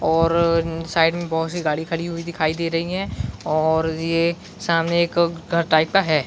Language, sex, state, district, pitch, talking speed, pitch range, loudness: Hindi, male, Chhattisgarh, Bilaspur, 165 Hz, 190 wpm, 160-170 Hz, -21 LUFS